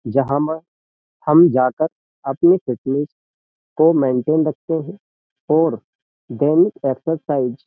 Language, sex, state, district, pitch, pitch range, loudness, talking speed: Hindi, male, Uttar Pradesh, Jyotiba Phule Nagar, 150 Hz, 130-160 Hz, -18 LUFS, 110 wpm